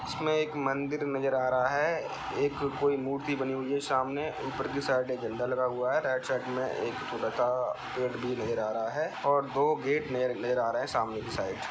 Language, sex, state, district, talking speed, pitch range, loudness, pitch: Hindi, male, Bihar, Saran, 225 wpm, 125-140 Hz, -31 LUFS, 130 Hz